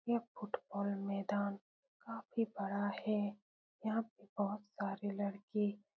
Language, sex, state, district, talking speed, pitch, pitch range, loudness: Hindi, female, Bihar, Saran, 120 wpm, 205 Hz, 200-220 Hz, -40 LUFS